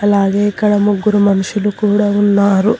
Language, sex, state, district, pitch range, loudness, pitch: Telugu, female, Telangana, Hyderabad, 200-210 Hz, -13 LUFS, 205 Hz